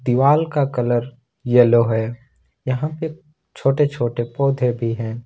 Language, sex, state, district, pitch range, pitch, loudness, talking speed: Hindi, male, Jharkhand, Ranchi, 120-140 Hz, 125 Hz, -19 LUFS, 135 wpm